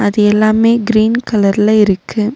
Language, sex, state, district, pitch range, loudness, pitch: Tamil, female, Tamil Nadu, Nilgiris, 210-220 Hz, -12 LUFS, 215 Hz